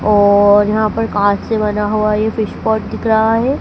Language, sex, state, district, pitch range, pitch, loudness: Hindi, female, Madhya Pradesh, Dhar, 205-220 Hz, 215 Hz, -14 LUFS